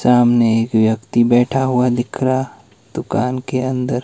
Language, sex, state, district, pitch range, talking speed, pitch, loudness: Hindi, male, Himachal Pradesh, Shimla, 120-130 Hz, 150 wpm, 125 Hz, -16 LUFS